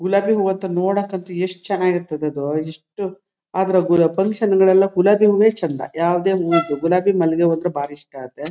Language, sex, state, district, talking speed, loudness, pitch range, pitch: Kannada, female, Karnataka, Shimoga, 155 wpm, -18 LUFS, 165-195 Hz, 180 Hz